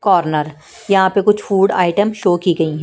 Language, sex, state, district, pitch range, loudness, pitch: Hindi, female, Punjab, Kapurthala, 160-200 Hz, -15 LUFS, 185 Hz